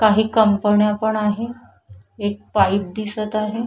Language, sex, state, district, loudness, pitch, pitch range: Marathi, female, Maharashtra, Chandrapur, -19 LUFS, 210 Hz, 200-215 Hz